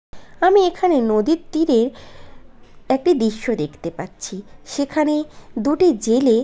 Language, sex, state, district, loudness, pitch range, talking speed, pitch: Bengali, female, West Bengal, Jhargram, -19 LUFS, 225-320 Hz, 100 wpm, 270 Hz